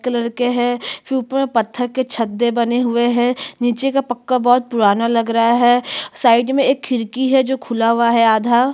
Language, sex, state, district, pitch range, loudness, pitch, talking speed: Hindi, female, Chhattisgarh, Sukma, 235-260 Hz, -16 LUFS, 245 Hz, 200 wpm